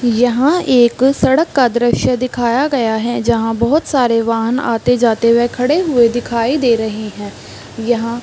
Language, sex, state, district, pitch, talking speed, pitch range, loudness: Hindi, female, Chhattisgarh, Balrampur, 240 Hz, 165 wpm, 230-255 Hz, -14 LUFS